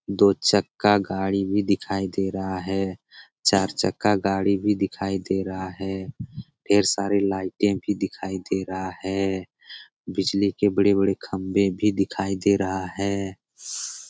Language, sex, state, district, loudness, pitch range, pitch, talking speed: Hindi, male, Bihar, Jamui, -24 LUFS, 95-100 Hz, 95 Hz, 155 wpm